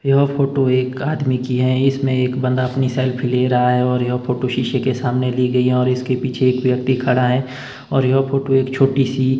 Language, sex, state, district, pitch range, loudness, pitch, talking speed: Hindi, male, Himachal Pradesh, Shimla, 125-135 Hz, -18 LUFS, 130 Hz, 230 wpm